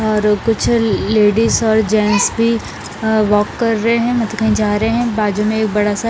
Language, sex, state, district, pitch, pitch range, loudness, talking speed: Hindi, female, Bihar, Patna, 220 Hz, 210-225 Hz, -15 LUFS, 205 wpm